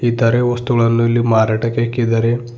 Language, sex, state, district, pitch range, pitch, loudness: Kannada, male, Karnataka, Bidar, 115-120 Hz, 115 Hz, -15 LUFS